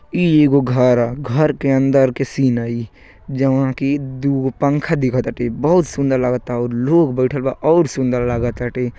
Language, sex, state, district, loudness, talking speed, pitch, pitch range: Bhojpuri, male, Uttar Pradesh, Gorakhpur, -17 LUFS, 185 wpm, 130 Hz, 125-140 Hz